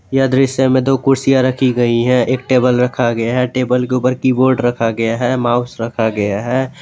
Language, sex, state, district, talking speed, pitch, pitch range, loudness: Hindi, male, Jharkhand, Garhwa, 210 wpm, 125 Hz, 120-130 Hz, -15 LUFS